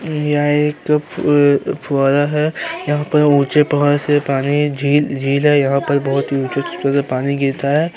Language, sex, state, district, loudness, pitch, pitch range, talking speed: Hindi, male, Uttar Pradesh, Hamirpur, -16 LUFS, 145 Hz, 140-150 Hz, 165 wpm